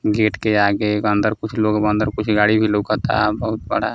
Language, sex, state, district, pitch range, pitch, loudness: Maithili, male, Bihar, Samastipur, 105-110 Hz, 105 Hz, -18 LUFS